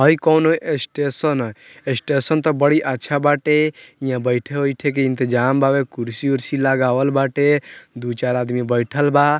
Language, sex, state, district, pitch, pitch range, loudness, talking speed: Bhojpuri, male, Bihar, Muzaffarpur, 140 Hz, 125-145 Hz, -19 LUFS, 140 wpm